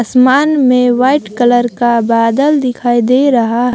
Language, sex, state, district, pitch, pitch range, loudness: Hindi, female, Jharkhand, Palamu, 245 Hz, 240-265 Hz, -11 LUFS